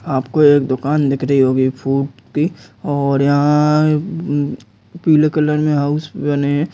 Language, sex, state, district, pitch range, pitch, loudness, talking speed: Hindi, female, Uttar Pradesh, Jalaun, 135-150 Hz, 145 Hz, -16 LUFS, 135 wpm